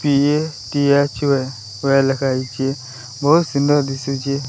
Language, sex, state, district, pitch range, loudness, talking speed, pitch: Odia, male, Odisha, Sambalpur, 135-145 Hz, -18 LUFS, 95 wpm, 140 Hz